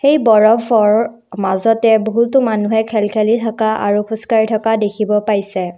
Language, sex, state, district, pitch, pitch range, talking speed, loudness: Assamese, female, Assam, Kamrup Metropolitan, 220 Hz, 210-225 Hz, 145 wpm, -14 LUFS